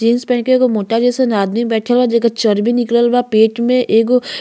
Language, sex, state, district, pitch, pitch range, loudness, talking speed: Bhojpuri, female, Uttar Pradesh, Ghazipur, 235 Hz, 225-245 Hz, -14 LUFS, 230 wpm